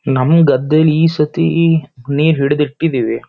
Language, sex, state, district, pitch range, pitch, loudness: Kannada, male, Karnataka, Shimoga, 140-165 Hz, 150 Hz, -13 LUFS